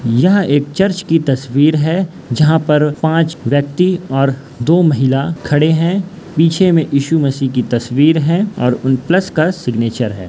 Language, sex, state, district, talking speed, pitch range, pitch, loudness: Hindi, male, Bihar, Gaya, 155 wpm, 135-170 Hz, 150 Hz, -14 LUFS